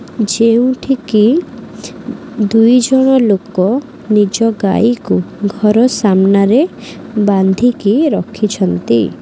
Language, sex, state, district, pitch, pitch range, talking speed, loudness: Odia, female, Odisha, Khordha, 220 Hz, 200-245 Hz, 70 wpm, -12 LUFS